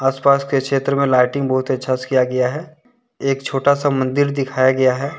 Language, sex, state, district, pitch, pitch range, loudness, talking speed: Hindi, male, Jharkhand, Deoghar, 135 Hz, 130-140 Hz, -17 LUFS, 230 wpm